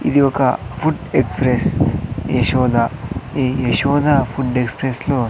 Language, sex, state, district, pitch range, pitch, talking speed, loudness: Telugu, male, Andhra Pradesh, Sri Satya Sai, 120-140 Hz, 130 Hz, 115 wpm, -18 LUFS